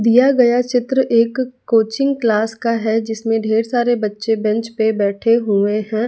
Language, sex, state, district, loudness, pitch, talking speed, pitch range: Hindi, female, Bihar, West Champaran, -17 LUFS, 225 Hz, 165 wpm, 220-245 Hz